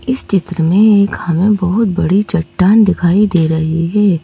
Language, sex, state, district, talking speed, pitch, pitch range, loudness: Hindi, female, Madhya Pradesh, Bhopal, 170 wpm, 190 Hz, 170-210 Hz, -12 LUFS